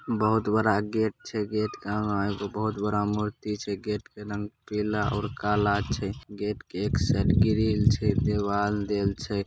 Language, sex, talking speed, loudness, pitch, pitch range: Angika, male, 185 wpm, -27 LUFS, 105 Hz, 105-110 Hz